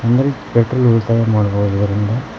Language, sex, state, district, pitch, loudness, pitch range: Kannada, male, Karnataka, Koppal, 115 Hz, -16 LUFS, 105-120 Hz